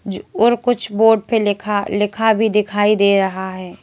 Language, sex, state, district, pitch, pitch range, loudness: Hindi, female, Madhya Pradesh, Bhopal, 205 Hz, 200-220 Hz, -16 LUFS